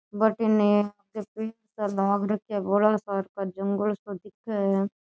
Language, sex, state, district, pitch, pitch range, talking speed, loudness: Rajasthani, female, Rajasthan, Nagaur, 205 Hz, 200-215 Hz, 165 wpm, -26 LUFS